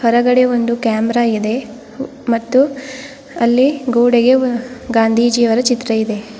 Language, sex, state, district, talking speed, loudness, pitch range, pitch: Kannada, female, Karnataka, Bidar, 85 wpm, -15 LUFS, 230-255 Hz, 240 Hz